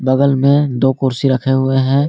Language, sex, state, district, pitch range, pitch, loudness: Hindi, male, Jharkhand, Garhwa, 130-140 Hz, 135 Hz, -14 LUFS